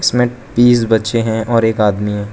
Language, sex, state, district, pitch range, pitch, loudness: Hindi, male, Arunachal Pradesh, Lower Dibang Valley, 105-120 Hz, 115 Hz, -14 LUFS